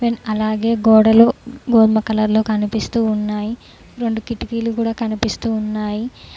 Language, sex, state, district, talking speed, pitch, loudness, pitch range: Telugu, female, Telangana, Mahabubabad, 115 wpm, 220 Hz, -17 LUFS, 215-230 Hz